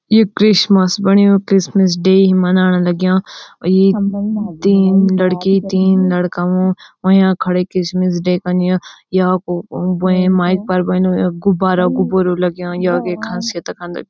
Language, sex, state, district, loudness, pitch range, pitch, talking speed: Garhwali, female, Uttarakhand, Uttarkashi, -14 LUFS, 180-195 Hz, 185 Hz, 140 wpm